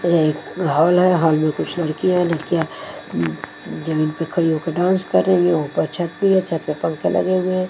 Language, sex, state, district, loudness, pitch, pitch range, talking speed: Hindi, female, Odisha, Nuapada, -19 LUFS, 165 Hz, 155-180 Hz, 180 wpm